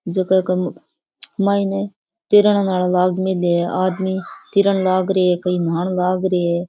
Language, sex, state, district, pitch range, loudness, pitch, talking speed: Rajasthani, female, Rajasthan, Churu, 180-195 Hz, -18 LUFS, 185 Hz, 145 wpm